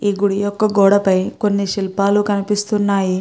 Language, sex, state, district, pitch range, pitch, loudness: Telugu, female, Andhra Pradesh, Guntur, 195-205 Hz, 200 Hz, -17 LUFS